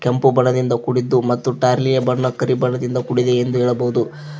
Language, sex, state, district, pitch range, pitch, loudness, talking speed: Kannada, male, Karnataka, Koppal, 125-130 Hz, 125 Hz, -18 LUFS, 150 wpm